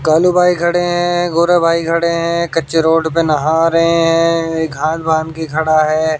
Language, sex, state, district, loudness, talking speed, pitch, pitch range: Hindi, male, Haryana, Jhajjar, -14 LUFS, 195 wpm, 165 Hz, 160-170 Hz